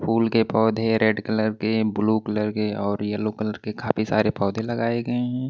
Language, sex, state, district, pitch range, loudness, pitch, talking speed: Hindi, male, Delhi, New Delhi, 105-115 Hz, -23 LUFS, 110 Hz, 205 wpm